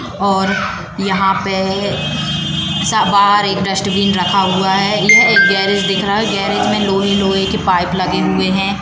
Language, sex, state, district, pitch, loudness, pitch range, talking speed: Hindi, female, Madhya Pradesh, Katni, 195 Hz, -14 LUFS, 190-200 Hz, 170 wpm